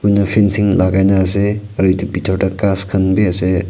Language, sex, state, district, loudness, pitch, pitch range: Nagamese, male, Nagaland, Kohima, -14 LUFS, 95 Hz, 95-100 Hz